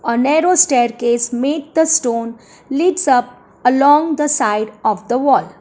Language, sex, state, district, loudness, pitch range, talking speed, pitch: English, female, Gujarat, Valsad, -15 LUFS, 235-300 Hz, 150 wpm, 260 Hz